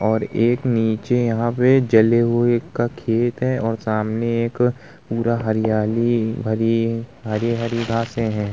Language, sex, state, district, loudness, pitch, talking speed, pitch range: Hindi, male, Uttar Pradesh, Muzaffarnagar, -20 LUFS, 115 Hz, 135 wpm, 110-120 Hz